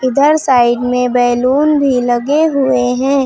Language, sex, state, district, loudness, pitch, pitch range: Hindi, female, Uttar Pradesh, Lucknow, -12 LUFS, 260 Hz, 245-280 Hz